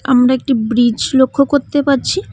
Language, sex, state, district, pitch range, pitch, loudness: Bengali, female, West Bengal, Cooch Behar, 245-280 Hz, 260 Hz, -14 LUFS